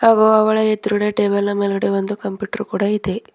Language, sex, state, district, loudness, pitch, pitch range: Kannada, female, Karnataka, Bidar, -18 LUFS, 205 Hz, 200-215 Hz